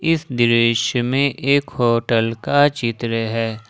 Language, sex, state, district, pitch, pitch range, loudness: Hindi, male, Jharkhand, Ranchi, 120 Hz, 115-140 Hz, -18 LUFS